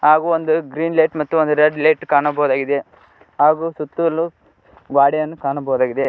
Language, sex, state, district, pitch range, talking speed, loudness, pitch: Kannada, male, Karnataka, Koppal, 140-160 Hz, 130 wpm, -17 LUFS, 150 Hz